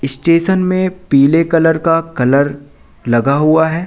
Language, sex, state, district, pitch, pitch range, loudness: Hindi, male, Madhya Pradesh, Katni, 160 Hz, 140-165 Hz, -13 LUFS